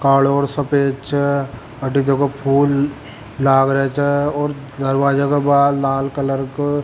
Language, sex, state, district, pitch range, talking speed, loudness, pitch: Rajasthani, male, Rajasthan, Churu, 135-140 Hz, 150 wpm, -17 LUFS, 140 Hz